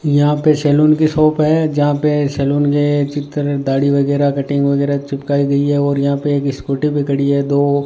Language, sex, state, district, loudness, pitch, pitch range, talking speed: Hindi, male, Rajasthan, Bikaner, -15 LUFS, 145 Hz, 140-145 Hz, 205 wpm